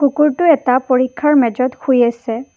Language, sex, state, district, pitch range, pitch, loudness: Assamese, female, Assam, Kamrup Metropolitan, 250-295 Hz, 260 Hz, -14 LUFS